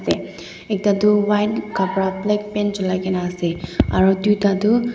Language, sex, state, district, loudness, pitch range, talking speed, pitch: Nagamese, female, Nagaland, Dimapur, -19 LUFS, 190-210 Hz, 170 wpm, 200 Hz